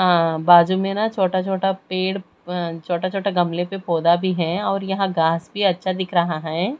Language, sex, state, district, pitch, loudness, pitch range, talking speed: Hindi, female, Chhattisgarh, Raipur, 185 Hz, -20 LUFS, 170-195 Hz, 205 wpm